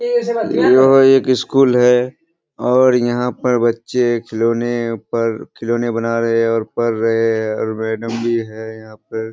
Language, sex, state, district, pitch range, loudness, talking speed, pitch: Hindi, male, Bihar, Kishanganj, 115-125 Hz, -16 LUFS, 155 wpm, 115 Hz